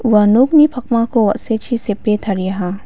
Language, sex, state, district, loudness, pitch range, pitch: Garo, female, Meghalaya, West Garo Hills, -15 LUFS, 205-240 Hz, 220 Hz